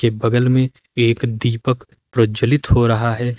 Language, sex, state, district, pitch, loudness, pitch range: Hindi, male, Uttar Pradesh, Lucknow, 120 Hz, -17 LUFS, 115-130 Hz